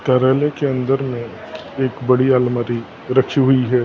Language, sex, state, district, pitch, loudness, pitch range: Hindi, male, Maharashtra, Gondia, 130 Hz, -18 LUFS, 125-135 Hz